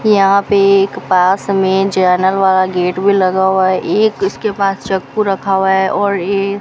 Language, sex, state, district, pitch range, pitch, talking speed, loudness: Hindi, female, Rajasthan, Bikaner, 190-200 Hz, 195 Hz, 200 wpm, -13 LUFS